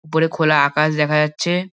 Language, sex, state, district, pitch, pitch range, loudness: Bengali, male, West Bengal, Dakshin Dinajpur, 155 Hz, 150-165 Hz, -17 LUFS